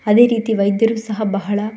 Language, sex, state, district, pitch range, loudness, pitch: Kannada, female, Karnataka, Shimoga, 205-225 Hz, -17 LUFS, 215 Hz